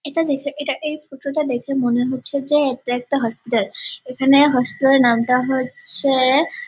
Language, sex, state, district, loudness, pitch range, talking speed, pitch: Bengali, male, West Bengal, Dakshin Dinajpur, -18 LUFS, 250-290 Hz, 160 wpm, 270 Hz